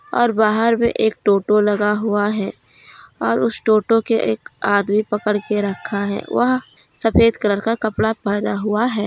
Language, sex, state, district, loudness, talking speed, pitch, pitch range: Hindi, female, Jharkhand, Deoghar, -18 LUFS, 180 wpm, 210 Hz, 205-225 Hz